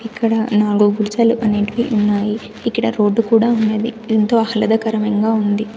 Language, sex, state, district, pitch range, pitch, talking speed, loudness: Telugu, female, Andhra Pradesh, Sri Satya Sai, 210-225 Hz, 220 Hz, 125 wpm, -16 LUFS